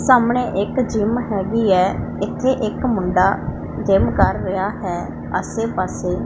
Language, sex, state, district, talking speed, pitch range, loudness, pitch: Punjabi, female, Punjab, Pathankot, 145 wpm, 200-245 Hz, -19 LUFS, 225 Hz